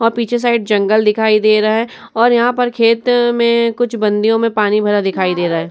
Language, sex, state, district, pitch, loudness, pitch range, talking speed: Hindi, female, Uttar Pradesh, Etah, 225 Hz, -14 LUFS, 210-235 Hz, 240 wpm